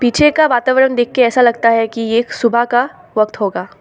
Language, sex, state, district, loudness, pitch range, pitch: Hindi, female, Assam, Sonitpur, -14 LUFS, 235-260 Hz, 240 Hz